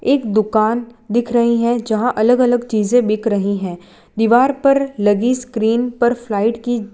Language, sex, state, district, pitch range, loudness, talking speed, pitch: Hindi, female, Gujarat, Valsad, 215-245 Hz, -16 LUFS, 175 wpm, 235 Hz